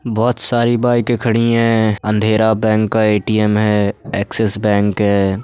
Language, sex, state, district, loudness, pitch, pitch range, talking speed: Hindi, male, Uttar Pradesh, Budaun, -15 LUFS, 110 Hz, 105-115 Hz, 145 wpm